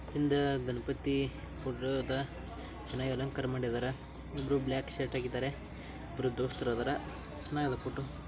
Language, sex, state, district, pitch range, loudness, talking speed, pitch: Kannada, male, Karnataka, Bijapur, 125-135 Hz, -36 LUFS, 130 wpm, 130 Hz